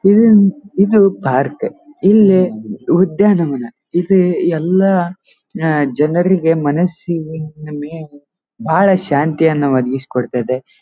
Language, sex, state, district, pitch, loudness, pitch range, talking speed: Kannada, male, Karnataka, Dharwad, 170 Hz, -14 LUFS, 150-195 Hz, 85 wpm